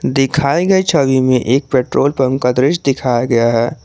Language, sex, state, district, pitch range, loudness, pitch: Hindi, male, Jharkhand, Garhwa, 125-140 Hz, -14 LUFS, 135 Hz